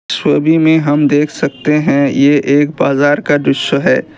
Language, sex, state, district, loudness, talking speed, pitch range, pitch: Hindi, male, Assam, Kamrup Metropolitan, -12 LUFS, 170 wpm, 145-150 Hz, 145 Hz